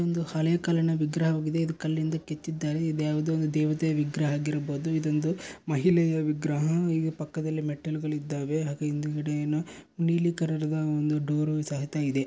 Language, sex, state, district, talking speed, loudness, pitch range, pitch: Kannada, male, Karnataka, Bellary, 145 wpm, -28 LUFS, 150-160 Hz, 155 Hz